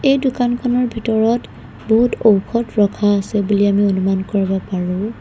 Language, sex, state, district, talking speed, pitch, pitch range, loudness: Assamese, female, Assam, Kamrup Metropolitan, 140 wpm, 210 Hz, 200-235 Hz, -17 LUFS